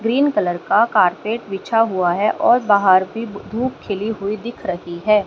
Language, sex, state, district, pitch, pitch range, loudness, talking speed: Hindi, female, Haryana, Rohtak, 210 Hz, 190-230 Hz, -18 LUFS, 180 wpm